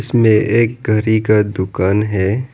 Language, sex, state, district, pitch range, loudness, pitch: Hindi, male, Arunachal Pradesh, Lower Dibang Valley, 105-115 Hz, -15 LUFS, 110 Hz